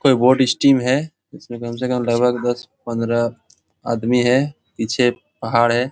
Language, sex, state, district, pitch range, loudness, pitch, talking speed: Hindi, male, Jharkhand, Jamtara, 115-130 Hz, -19 LUFS, 120 Hz, 160 wpm